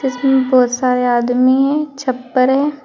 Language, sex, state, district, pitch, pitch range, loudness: Hindi, female, Uttar Pradesh, Shamli, 260 Hz, 250-275 Hz, -15 LUFS